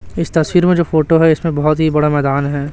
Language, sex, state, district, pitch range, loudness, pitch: Hindi, male, Chhattisgarh, Raipur, 150-165 Hz, -14 LUFS, 155 Hz